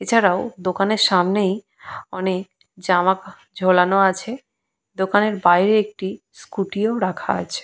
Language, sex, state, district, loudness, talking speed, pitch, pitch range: Bengali, female, West Bengal, Purulia, -19 LUFS, 110 wpm, 195 Hz, 185-210 Hz